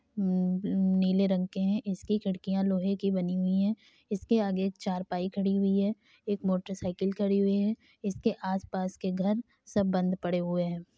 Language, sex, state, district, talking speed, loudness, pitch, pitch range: Hindi, female, Uttar Pradesh, Jalaun, 180 wpm, -30 LUFS, 195 Hz, 185-205 Hz